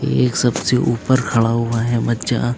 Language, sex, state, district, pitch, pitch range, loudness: Hindi, female, Uttar Pradesh, Lucknow, 120 Hz, 115-125 Hz, -17 LUFS